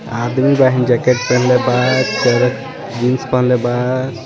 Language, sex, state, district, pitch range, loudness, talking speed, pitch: Bhojpuri, male, Jharkhand, Palamu, 120-130 Hz, -14 LUFS, 125 wpm, 125 Hz